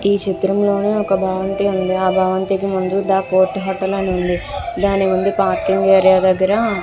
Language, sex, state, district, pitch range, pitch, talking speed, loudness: Telugu, female, Andhra Pradesh, Visakhapatnam, 185-195 Hz, 190 Hz, 175 wpm, -16 LUFS